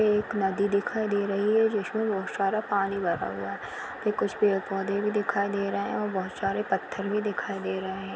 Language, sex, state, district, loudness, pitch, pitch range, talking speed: Hindi, female, Chhattisgarh, Rajnandgaon, -28 LUFS, 200 Hz, 195-210 Hz, 215 wpm